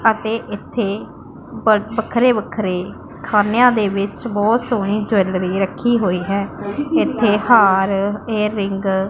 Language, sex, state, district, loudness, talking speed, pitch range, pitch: Punjabi, female, Punjab, Pathankot, -18 LUFS, 120 wpm, 195-230 Hz, 210 Hz